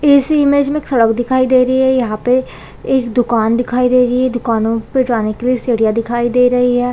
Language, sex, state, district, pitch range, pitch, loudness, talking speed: Hindi, female, Chhattisgarh, Balrampur, 235-260 Hz, 250 Hz, -14 LUFS, 235 wpm